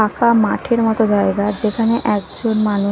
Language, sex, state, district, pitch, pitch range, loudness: Bengali, female, Odisha, Nuapada, 215 Hz, 205-225 Hz, -16 LUFS